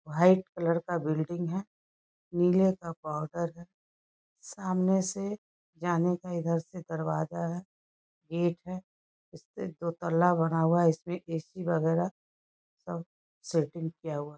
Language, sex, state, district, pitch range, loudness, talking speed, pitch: Hindi, female, West Bengal, North 24 Parganas, 160-180 Hz, -30 LUFS, 135 wpm, 170 Hz